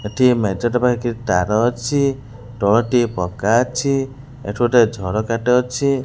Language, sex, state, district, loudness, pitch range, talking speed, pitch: Odia, male, Odisha, Khordha, -18 LUFS, 110-125 Hz, 140 wpm, 120 Hz